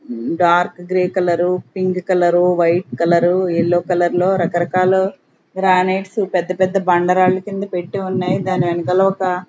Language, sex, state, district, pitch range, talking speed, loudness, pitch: Telugu, female, Andhra Pradesh, Sri Satya Sai, 175-185 Hz, 145 wpm, -17 LUFS, 185 Hz